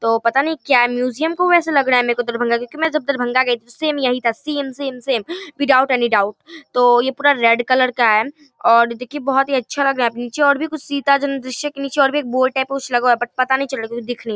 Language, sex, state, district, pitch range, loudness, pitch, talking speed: Maithili, female, Bihar, Darbhanga, 240-285 Hz, -17 LUFS, 260 Hz, 290 wpm